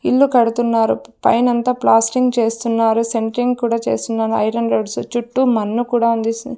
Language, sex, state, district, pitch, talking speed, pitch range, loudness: Telugu, female, Andhra Pradesh, Sri Satya Sai, 230 Hz, 135 wpm, 225-240 Hz, -17 LUFS